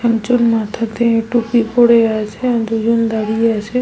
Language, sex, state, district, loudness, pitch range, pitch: Bengali, female, West Bengal, Malda, -15 LUFS, 225-235 Hz, 230 Hz